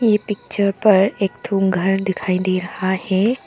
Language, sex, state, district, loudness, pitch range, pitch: Hindi, female, Arunachal Pradesh, Papum Pare, -19 LUFS, 190-210 Hz, 195 Hz